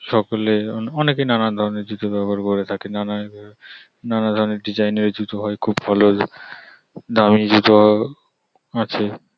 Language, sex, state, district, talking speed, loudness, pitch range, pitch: Bengali, male, West Bengal, North 24 Parganas, 120 wpm, -19 LUFS, 105-110 Hz, 105 Hz